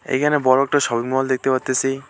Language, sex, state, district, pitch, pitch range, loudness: Bengali, male, West Bengal, Alipurduar, 130 Hz, 130-135 Hz, -19 LUFS